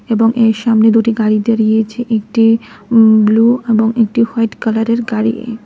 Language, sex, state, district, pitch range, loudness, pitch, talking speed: Bengali, female, Tripura, West Tripura, 220-230 Hz, -12 LUFS, 225 Hz, 160 wpm